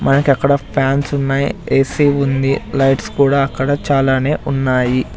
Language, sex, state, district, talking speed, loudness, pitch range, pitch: Telugu, male, Andhra Pradesh, Sri Satya Sai, 125 wpm, -15 LUFS, 135-140 Hz, 135 Hz